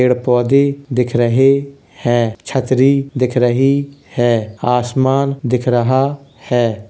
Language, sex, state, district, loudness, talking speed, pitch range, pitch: Hindi, male, Uttar Pradesh, Jalaun, -15 LUFS, 130 wpm, 120-140 Hz, 130 Hz